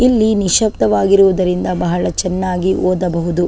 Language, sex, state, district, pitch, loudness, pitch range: Kannada, female, Karnataka, Chamarajanagar, 185 Hz, -14 LUFS, 180-195 Hz